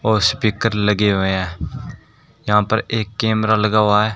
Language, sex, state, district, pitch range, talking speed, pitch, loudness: Hindi, male, Rajasthan, Bikaner, 105-110 Hz, 175 wpm, 105 Hz, -18 LUFS